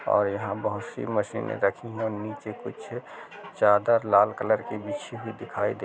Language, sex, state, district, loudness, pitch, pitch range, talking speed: Hindi, male, Chhattisgarh, Rajnandgaon, -27 LUFS, 105 Hz, 100-110 Hz, 165 wpm